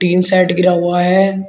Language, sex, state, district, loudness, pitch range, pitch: Hindi, male, Uttar Pradesh, Shamli, -13 LUFS, 180-190 Hz, 180 Hz